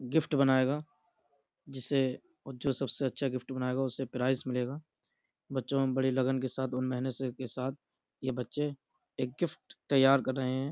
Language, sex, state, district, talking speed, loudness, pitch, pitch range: Hindi, male, Uttar Pradesh, Budaun, 175 wpm, -32 LUFS, 130 Hz, 130-140 Hz